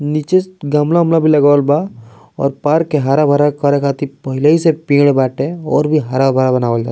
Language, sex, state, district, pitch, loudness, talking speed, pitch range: Bhojpuri, male, Bihar, East Champaran, 145 Hz, -14 LUFS, 190 wpm, 135-155 Hz